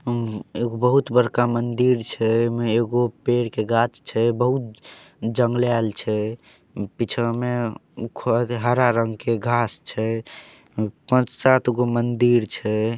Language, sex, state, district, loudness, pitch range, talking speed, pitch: Maithili, male, Bihar, Saharsa, -22 LUFS, 115-120 Hz, 120 wpm, 120 Hz